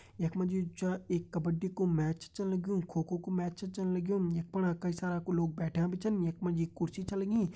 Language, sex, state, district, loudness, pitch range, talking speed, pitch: Hindi, male, Uttarakhand, Tehri Garhwal, -34 LUFS, 170-190 Hz, 255 wpm, 180 Hz